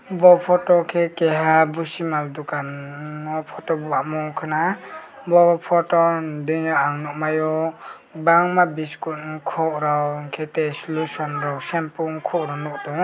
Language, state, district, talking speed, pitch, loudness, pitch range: Kokborok, Tripura, West Tripura, 140 wpm, 160 Hz, -21 LUFS, 150-170 Hz